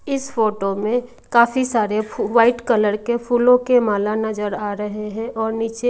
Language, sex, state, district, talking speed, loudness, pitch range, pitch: Hindi, female, Odisha, Malkangiri, 175 wpm, -19 LUFS, 210-245 Hz, 225 Hz